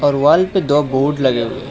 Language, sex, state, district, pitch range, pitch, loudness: Hindi, male, Assam, Hailakandi, 135-150 Hz, 145 Hz, -15 LUFS